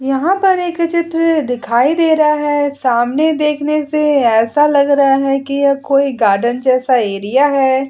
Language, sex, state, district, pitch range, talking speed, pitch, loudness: Hindi, female, Uttar Pradesh, Hamirpur, 260-305 Hz, 165 wpm, 280 Hz, -13 LUFS